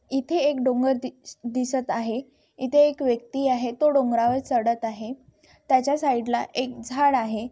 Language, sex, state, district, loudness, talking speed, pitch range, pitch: Marathi, female, Maharashtra, Chandrapur, -24 LUFS, 150 wpm, 240-270 Hz, 255 Hz